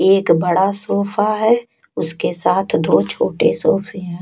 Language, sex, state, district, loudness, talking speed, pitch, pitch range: Hindi, female, Chhattisgarh, Raipur, -17 LUFS, 140 wpm, 195 Hz, 185-210 Hz